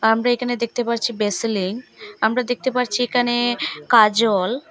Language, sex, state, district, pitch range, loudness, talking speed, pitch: Bengali, female, Assam, Hailakandi, 225-245 Hz, -19 LUFS, 130 wpm, 240 Hz